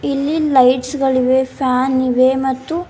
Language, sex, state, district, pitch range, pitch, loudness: Kannada, female, Karnataka, Bidar, 255-280 Hz, 260 Hz, -15 LUFS